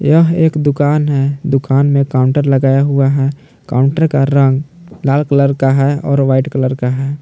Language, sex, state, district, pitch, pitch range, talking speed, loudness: Hindi, male, Jharkhand, Palamu, 140 Hz, 135-145 Hz, 175 wpm, -13 LUFS